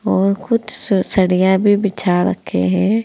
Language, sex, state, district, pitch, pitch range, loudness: Hindi, female, Uttar Pradesh, Saharanpur, 195 Hz, 180-205 Hz, -16 LUFS